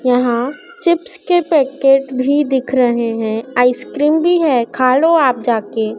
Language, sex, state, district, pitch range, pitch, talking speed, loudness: Hindi, female, Madhya Pradesh, Dhar, 245-300 Hz, 260 Hz, 150 wpm, -15 LUFS